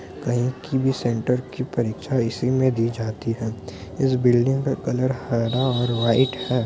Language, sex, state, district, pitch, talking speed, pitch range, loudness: Hindi, male, Bihar, Muzaffarpur, 120 Hz, 170 wpm, 115-130 Hz, -22 LUFS